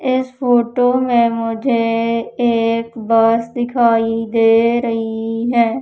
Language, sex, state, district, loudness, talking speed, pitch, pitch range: Hindi, female, Madhya Pradesh, Umaria, -16 LUFS, 105 wpm, 230 Hz, 225-240 Hz